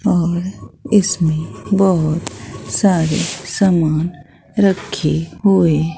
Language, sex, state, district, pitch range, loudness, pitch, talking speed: Hindi, female, Bihar, Katihar, 155-195 Hz, -16 LUFS, 170 Hz, 70 wpm